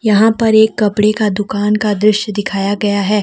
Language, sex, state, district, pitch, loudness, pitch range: Hindi, female, Jharkhand, Deoghar, 210 Hz, -13 LUFS, 205-215 Hz